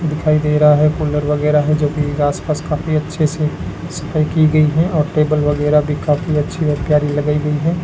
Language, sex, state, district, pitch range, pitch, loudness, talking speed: Hindi, male, Rajasthan, Bikaner, 150-155 Hz, 150 Hz, -16 LUFS, 215 wpm